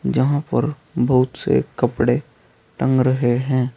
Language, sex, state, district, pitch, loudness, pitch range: Hindi, male, Uttar Pradesh, Saharanpur, 130 Hz, -19 LUFS, 125-145 Hz